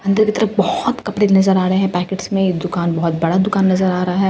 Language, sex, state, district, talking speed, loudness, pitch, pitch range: Hindi, female, Bihar, Katihar, 280 wpm, -16 LUFS, 190 Hz, 180-200 Hz